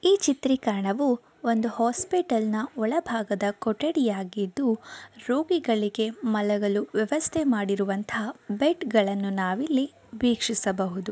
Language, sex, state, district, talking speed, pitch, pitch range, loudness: Kannada, female, Karnataka, Mysore, 90 wpm, 225 Hz, 205-270 Hz, -26 LUFS